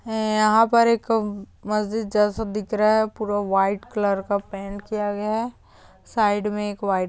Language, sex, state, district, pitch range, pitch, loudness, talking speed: Hindi, female, Andhra Pradesh, Chittoor, 205-220 Hz, 210 Hz, -22 LUFS, 170 wpm